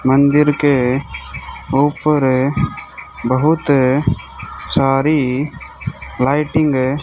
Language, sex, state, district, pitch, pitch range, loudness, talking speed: Hindi, male, Rajasthan, Bikaner, 140 Hz, 130-150 Hz, -16 LUFS, 60 wpm